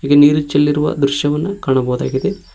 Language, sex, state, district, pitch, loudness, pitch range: Kannada, male, Karnataka, Koppal, 145 Hz, -15 LUFS, 140-150 Hz